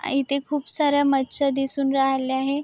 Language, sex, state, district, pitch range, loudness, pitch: Marathi, female, Maharashtra, Chandrapur, 270-285 Hz, -22 LUFS, 275 Hz